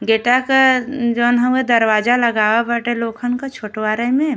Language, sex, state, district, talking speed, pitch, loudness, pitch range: Bhojpuri, female, Uttar Pradesh, Gorakhpur, 165 wpm, 240 Hz, -16 LUFS, 225-255 Hz